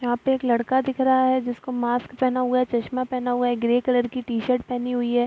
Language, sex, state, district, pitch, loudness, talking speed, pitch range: Hindi, female, Bihar, Araria, 250 Hz, -23 LUFS, 250 wpm, 240-255 Hz